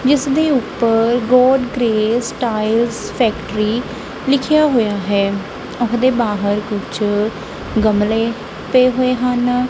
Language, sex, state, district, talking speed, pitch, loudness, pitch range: Punjabi, female, Punjab, Kapurthala, 105 wpm, 235 Hz, -16 LUFS, 215-255 Hz